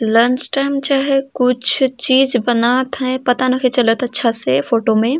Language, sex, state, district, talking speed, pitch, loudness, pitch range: Sadri, female, Chhattisgarh, Jashpur, 175 wpm, 255 Hz, -15 LUFS, 235-265 Hz